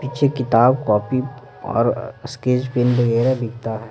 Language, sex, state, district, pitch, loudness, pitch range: Hindi, male, Bihar, Patna, 125 Hz, -19 LUFS, 115-130 Hz